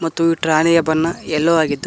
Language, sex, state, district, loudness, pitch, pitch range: Kannada, male, Karnataka, Koppal, -16 LUFS, 165 Hz, 160-165 Hz